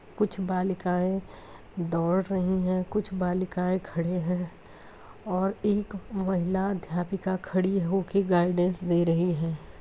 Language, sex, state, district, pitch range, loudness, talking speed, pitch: Hindi, female, Uttar Pradesh, Deoria, 180-190 Hz, -28 LUFS, 115 wpm, 185 Hz